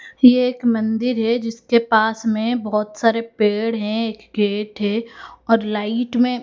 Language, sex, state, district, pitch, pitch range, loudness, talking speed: Hindi, female, Odisha, Khordha, 225 Hz, 215-240 Hz, -19 LUFS, 150 wpm